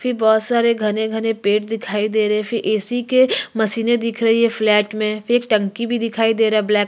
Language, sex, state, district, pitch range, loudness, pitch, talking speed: Hindi, female, Chhattisgarh, Sukma, 215-235 Hz, -18 LUFS, 225 Hz, 235 wpm